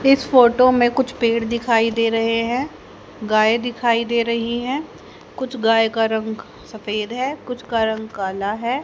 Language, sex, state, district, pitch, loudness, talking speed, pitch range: Hindi, female, Haryana, Jhajjar, 230 Hz, -19 LUFS, 170 wpm, 225-250 Hz